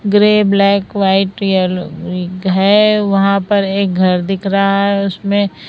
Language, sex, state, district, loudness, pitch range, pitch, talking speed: Hindi, female, Maharashtra, Mumbai Suburban, -13 LUFS, 190-200 Hz, 195 Hz, 135 wpm